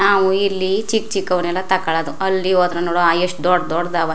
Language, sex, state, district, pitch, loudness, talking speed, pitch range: Kannada, female, Karnataka, Chamarajanagar, 180 Hz, -18 LUFS, 190 wpm, 175-190 Hz